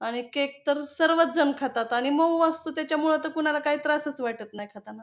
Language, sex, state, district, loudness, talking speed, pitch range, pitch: Marathi, female, Maharashtra, Pune, -25 LUFS, 190 wpm, 240-315 Hz, 295 Hz